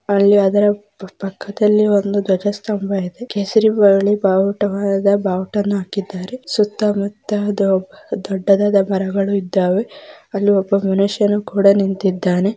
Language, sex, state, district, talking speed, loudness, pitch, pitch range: Kannada, female, Karnataka, Belgaum, 105 wpm, -17 LUFS, 200 Hz, 195-205 Hz